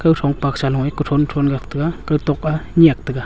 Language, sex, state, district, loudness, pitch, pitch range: Wancho, male, Arunachal Pradesh, Longding, -18 LUFS, 145 Hz, 140-155 Hz